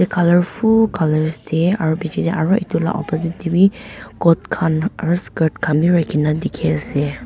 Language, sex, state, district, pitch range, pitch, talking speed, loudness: Nagamese, female, Nagaland, Dimapur, 155-180 Hz, 170 Hz, 165 wpm, -17 LUFS